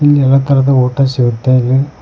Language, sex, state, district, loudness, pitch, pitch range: Kannada, male, Karnataka, Koppal, -11 LUFS, 135 Hz, 125-140 Hz